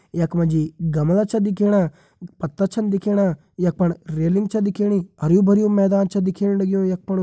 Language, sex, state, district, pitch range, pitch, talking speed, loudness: Hindi, male, Uttarakhand, Uttarkashi, 170-200 Hz, 190 Hz, 185 wpm, -20 LUFS